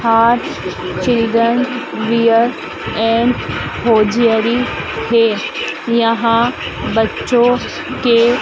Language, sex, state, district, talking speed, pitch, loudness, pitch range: Hindi, female, Madhya Pradesh, Dhar, 70 wpm, 230 Hz, -15 LUFS, 230-245 Hz